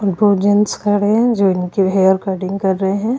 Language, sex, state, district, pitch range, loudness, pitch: Hindi, female, Goa, North and South Goa, 190-205 Hz, -15 LUFS, 195 Hz